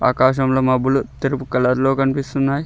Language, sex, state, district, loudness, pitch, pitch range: Telugu, male, Telangana, Mahabubabad, -18 LUFS, 135 Hz, 130-135 Hz